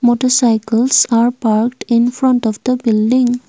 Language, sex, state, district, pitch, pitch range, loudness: English, female, Assam, Kamrup Metropolitan, 240 Hz, 230-250 Hz, -14 LUFS